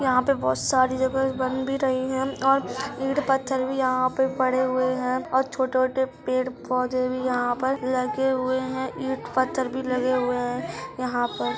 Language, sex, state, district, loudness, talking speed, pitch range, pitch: Hindi, female, Jharkhand, Jamtara, -25 LUFS, 185 wpm, 255-265 Hz, 260 Hz